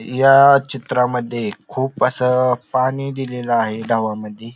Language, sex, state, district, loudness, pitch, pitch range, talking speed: Marathi, male, Maharashtra, Pune, -17 LUFS, 125 Hz, 115-135 Hz, 105 wpm